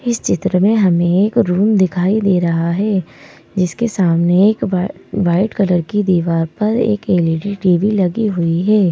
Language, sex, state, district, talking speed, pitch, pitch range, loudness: Hindi, male, Madhya Pradesh, Bhopal, 190 wpm, 190 Hz, 175-210 Hz, -15 LUFS